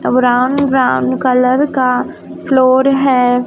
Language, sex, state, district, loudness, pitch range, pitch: Hindi, female, Chhattisgarh, Raipur, -12 LUFS, 250-265 Hz, 255 Hz